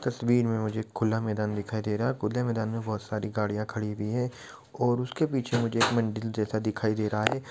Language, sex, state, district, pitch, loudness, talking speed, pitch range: Maithili, male, Bihar, Supaul, 110 Hz, -29 LUFS, 200 wpm, 110-120 Hz